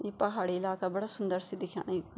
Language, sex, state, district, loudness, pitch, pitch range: Garhwali, female, Uttarakhand, Tehri Garhwal, -34 LUFS, 185 Hz, 180-200 Hz